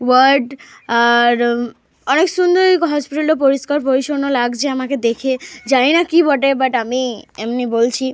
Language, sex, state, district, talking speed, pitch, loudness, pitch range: Bengali, female, Jharkhand, Jamtara, 125 wpm, 265 Hz, -15 LUFS, 245-290 Hz